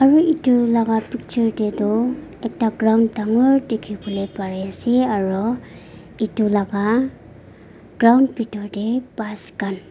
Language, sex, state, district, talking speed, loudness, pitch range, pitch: Nagamese, female, Nagaland, Dimapur, 120 wpm, -20 LUFS, 210-245 Hz, 225 Hz